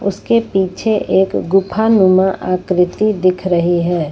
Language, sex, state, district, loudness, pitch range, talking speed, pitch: Hindi, female, Jharkhand, Ranchi, -14 LUFS, 180-200 Hz, 130 wpm, 190 Hz